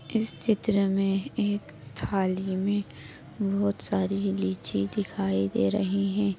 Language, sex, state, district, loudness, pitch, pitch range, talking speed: Hindi, female, Maharashtra, Dhule, -28 LUFS, 195 Hz, 125-200 Hz, 120 wpm